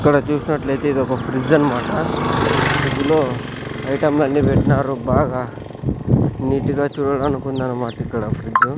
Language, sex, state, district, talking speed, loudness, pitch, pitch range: Telugu, male, Andhra Pradesh, Sri Satya Sai, 125 wpm, -19 LUFS, 135 Hz, 130-145 Hz